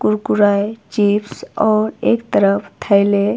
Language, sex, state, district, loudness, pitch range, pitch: Hindi, female, Himachal Pradesh, Shimla, -16 LUFS, 200-215 Hz, 205 Hz